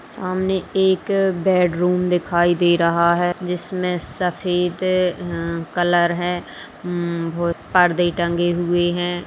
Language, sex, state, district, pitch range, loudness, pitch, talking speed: Hindi, female, Bihar, Purnia, 175-180 Hz, -20 LUFS, 175 Hz, 115 wpm